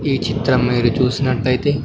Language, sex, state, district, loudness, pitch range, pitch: Telugu, male, Andhra Pradesh, Sri Satya Sai, -17 LUFS, 125-135 Hz, 130 Hz